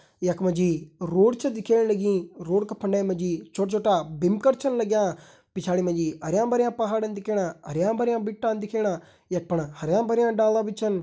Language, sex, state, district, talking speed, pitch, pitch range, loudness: Hindi, male, Uttarakhand, Tehri Garhwal, 195 wpm, 200 Hz, 180-220 Hz, -25 LUFS